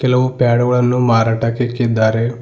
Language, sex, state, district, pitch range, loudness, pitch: Kannada, male, Karnataka, Bidar, 115-125 Hz, -15 LUFS, 120 Hz